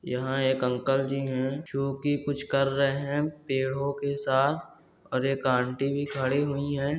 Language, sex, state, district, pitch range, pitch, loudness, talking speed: Hindi, male, Chhattisgarh, Sukma, 135-145 Hz, 135 Hz, -28 LUFS, 180 wpm